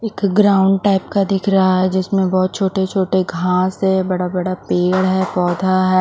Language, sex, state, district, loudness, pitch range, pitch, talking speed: Hindi, female, Haryana, Rohtak, -16 LUFS, 185-195 Hz, 190 Hz, 170 wpm